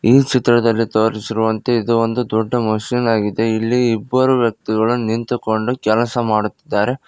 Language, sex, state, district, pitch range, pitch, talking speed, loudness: Kannada, male, Karnataka, Koppal, 110-120 Hz, 115 Hz, 120 wpm, -17 LUFS